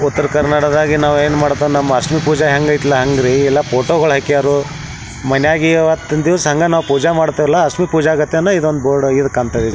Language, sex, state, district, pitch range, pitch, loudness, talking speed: Kannada, male, Karnataka, Belgaum, 140-155 Hz, 150 Hz, -13 LUFS, 205 wpm